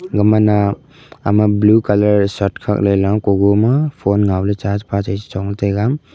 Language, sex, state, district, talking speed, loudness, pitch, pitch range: Wancho, male, Arunachal Pradesh, Longding, 175 wpm, -15 LUFS, 100 Hz, 100-105 Hz